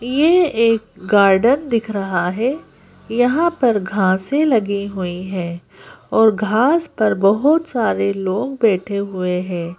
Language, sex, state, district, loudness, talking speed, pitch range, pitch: Hindi, female, Madhya Pradesh, Bhopal, -17 LUFS, 130 wpm, 190-250 Hz, 215 Hz